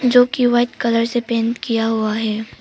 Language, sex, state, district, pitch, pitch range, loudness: Hindi, female, Arunachal Pradesh, Papum Pare, 235 Hz, 225-240 Hz, -18 LUFS